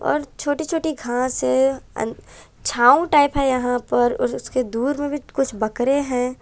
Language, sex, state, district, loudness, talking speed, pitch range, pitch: Hindi, female, Punjab, Kapurthala, -20 LUFS, 180 wpm, 245-290 Hz, 265 Hz